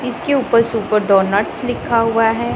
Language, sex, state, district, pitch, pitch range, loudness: Hindi, female, Punjab, Pathankot, 230 Hz, 215-245 Hz, -16 LUFS